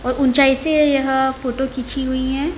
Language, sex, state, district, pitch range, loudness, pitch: Hindi, female, Bihar, Begusarai, 260-275 Hz, -17 LUFS, 265 Hz